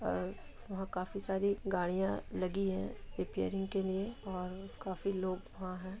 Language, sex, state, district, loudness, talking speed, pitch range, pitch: Hindi, female, Jharkhand, Sahebganj, -38 LUFS, 120 wpm, 180-195 Hz, 190 Hz